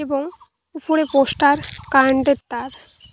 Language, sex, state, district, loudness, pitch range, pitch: Bengali, female, West Bengal, Cooch Behar, -18 LUFS, 275-315 Hz, 285 Hz